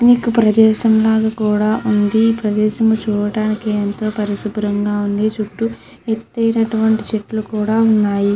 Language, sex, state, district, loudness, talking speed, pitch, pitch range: Telugu, female, Andhra Pradesh, Krishna, -16 LUFS, 115 wpm, 215 Hz, 210-220 Hz